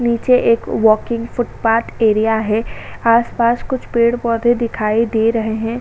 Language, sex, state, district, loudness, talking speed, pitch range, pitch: Hindi, female, Uttar Pradesh, Jalaun, -16 LUFS, 145 wpm, 225-235 Hz, 230 Hz